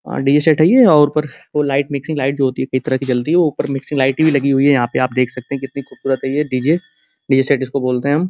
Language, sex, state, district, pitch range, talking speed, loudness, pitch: Hindi, male, Uttar Pradesh, Gorakhpur, 130-150 Hz, 330 wpm, -16 LUFS, 140 Hz